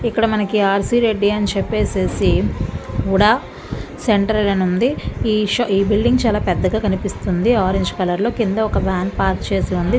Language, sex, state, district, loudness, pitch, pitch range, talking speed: Telugu, female, Andhra Pradesh, Visakhapatnam, -18 LUFS, 210 Hz, 195-225 Hz, 155 wpm